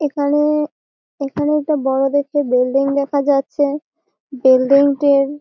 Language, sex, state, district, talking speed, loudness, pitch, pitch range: Bengali, female, West Bengal, Malda, 110 wpm, -16 LUFS, 285 Hz, 275-295 Hz